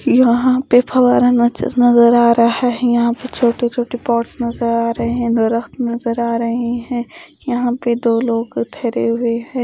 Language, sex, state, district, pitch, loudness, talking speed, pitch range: Hindi, female, Odisha, Khordha, 240 Hz, -16 LUFS, 175 wpm, 235-245 Hz